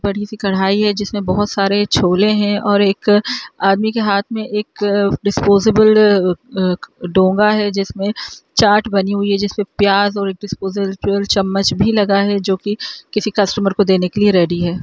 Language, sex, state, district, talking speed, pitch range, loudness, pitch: Hindi, female, Bihar, Araria, 175 wpm, 195-205 Hz, -15 LUFS, 200 Hz